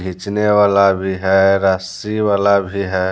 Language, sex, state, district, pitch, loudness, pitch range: Hindi, male, Bihar, Patna, 95 Hz, -15 LUFS, 95-100 Hz